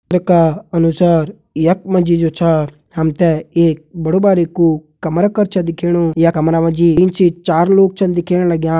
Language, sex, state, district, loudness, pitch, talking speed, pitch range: Hindi, male, Uttarakhand, Uttarkashi, -14 LUFS, 170 Hz, 190 wpm, 165-180 Hz